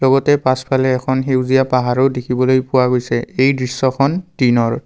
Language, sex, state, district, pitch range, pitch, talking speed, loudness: Assamese, male, Assam, Kamrup Metropolitan, 125-135 Hz, 130 Hz, 135 wpm, -16 LUFS